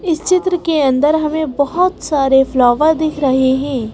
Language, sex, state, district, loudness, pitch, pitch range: Hindi, female, Madhya Pradesh, Bhopal, -14 LUFS, 295 Hz, 265-320 Hz